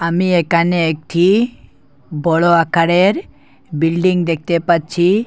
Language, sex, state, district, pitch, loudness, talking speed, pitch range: Bengali, male, Assam, Hailakandi, 170 Hz, -15 LUFS, 90 wpm, 165-180 Hz